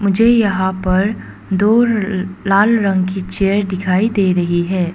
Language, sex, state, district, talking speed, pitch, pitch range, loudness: Hindi, female, Arunachal Pradesh, Papum Pare, 145 wpm, 195 Hz, 185-205 Hz, -15 LUFS